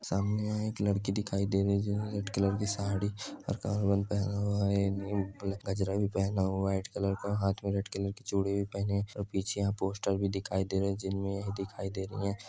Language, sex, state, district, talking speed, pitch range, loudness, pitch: Hindi, male, Andhra Pradesh, Chittoor, 205 wpm, 95-100 Hz, -33 LUFS, 100 Hz